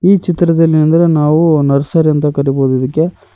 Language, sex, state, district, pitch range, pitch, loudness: Kannada, male, Karnataka, Koppal, 140-165 Hz, 155 Hz, -11 LUFS